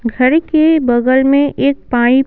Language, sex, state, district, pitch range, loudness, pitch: Hindi, female, Bihar, Patna, 250-290 Hz, -12 LUFS, 265 Hz